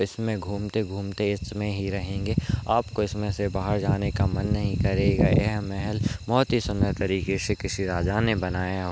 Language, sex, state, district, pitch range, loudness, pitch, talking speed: Hindi, male, Rajasthan, Nagaur, 95-105 Hz, -26 LUFS, 100 Hz, 195 wpm